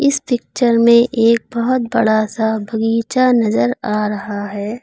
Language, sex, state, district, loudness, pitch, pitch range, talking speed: Hindi, female, Uttar Pradesh, Lucknow, -16 LUFS, 230 Hz, 215-245 Hz, 150 wpm